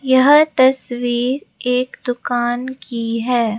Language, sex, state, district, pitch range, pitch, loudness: Hindi, female, Rajasthan, Jaipur, 240-260 Hz, 250 Hz, -17 LUFS